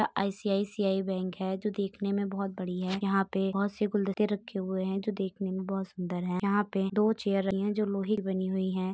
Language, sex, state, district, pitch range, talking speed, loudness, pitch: Bhojpuri, female, Uttar Pradesh, Gorakhpur, 190-200 Hz, 240 wpm, -31 LUFS, 195 Hz